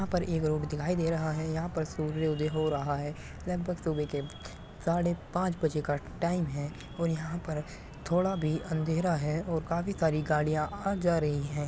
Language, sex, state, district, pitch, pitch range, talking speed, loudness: Hindi, male, Uttar Pradesh, Muzaffarnagar, 160 Hz, 150-170 Hz, 200 wpm, -31 LUFS